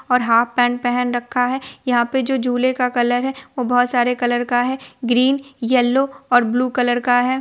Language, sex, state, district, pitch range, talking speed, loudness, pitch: Hindi, female, Bihar, Supaul, 245-260 Hz, 210 wpm, -18 LUFS, 250 Hz